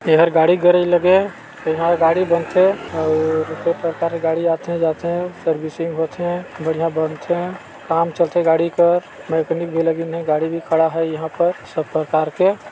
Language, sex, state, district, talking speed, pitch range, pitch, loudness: Chhattisgarhi, male, Chhattisgarh, Balrampur, 165 wpm, 160-175 Hz, 165 Hz, -18 LUFS